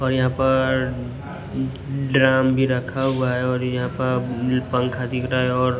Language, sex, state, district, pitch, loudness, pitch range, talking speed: Hindi, male, Odisha, Nuapada, 130 Hz, -21 LUFS, 125-130 Hz, 165 wpm